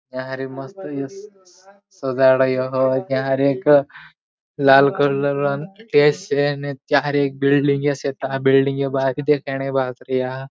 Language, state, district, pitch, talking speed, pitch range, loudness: Bhili, Maharashtra, Dhule, 140 Hz, 115 wpm, 135-145 Hz, -19 LUFS